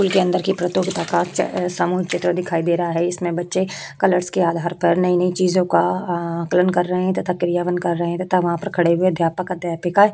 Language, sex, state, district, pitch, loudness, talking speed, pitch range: Hindi, female, Uttar Pradesh, Hamirpur, 180 Hz, -20 LUFS, 220 wpm, 170-185 Hz